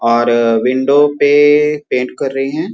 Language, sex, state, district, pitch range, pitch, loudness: Hindi, male, Uttar Pradesh, Muzaffarnagar, 120-145 Hz, 135 Hz, -12 LUFS